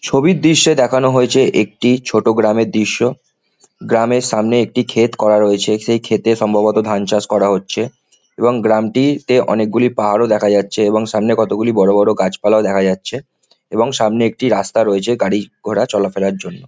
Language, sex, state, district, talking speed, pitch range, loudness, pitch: Bengali, male, West Bengal, Malda, 165 wpm, 105-120 Hz, -14 LUFS, 110 Hz